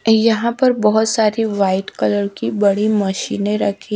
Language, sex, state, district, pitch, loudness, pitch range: Hindi, female, Haryana, Charkhi Dadri, 210 Hz, -17 LUFS, 200-225 Hz